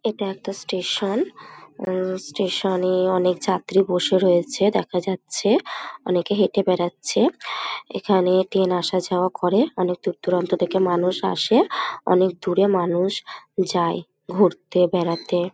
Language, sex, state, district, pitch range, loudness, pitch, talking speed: Bengali, female, West Bengal, North 24 Parganas, 180-200 Hz, -21 LUFS, 185 Hz, 120 wpm